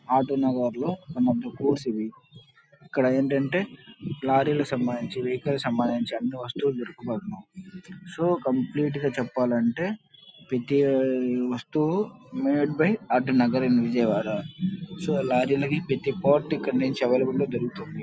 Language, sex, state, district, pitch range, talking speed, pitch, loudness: Telugu, male, Andhra Pradesh, Krishna, 125-170 Hz, 135 wpm, 135 Hz, -26 LUFS